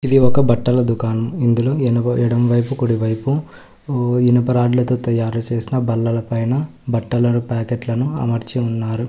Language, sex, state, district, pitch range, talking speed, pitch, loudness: Telugu, male, Telangana, Hyderabad, 115-125 Hz, 110 wpm, 120 Hz, -18 LUFS